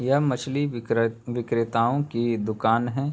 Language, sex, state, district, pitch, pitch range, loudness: Hindi, male, Uttar Pradesh, Hamirpur, 120 Hz, 115-140 Hz, -25 LUFS